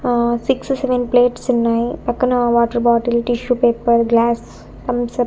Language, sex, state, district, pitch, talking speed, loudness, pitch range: Telugu, female, Andhra Pradesh, Annamaya, 240 Hz, 135 wpm, -17 LUFS, 235-245 Hz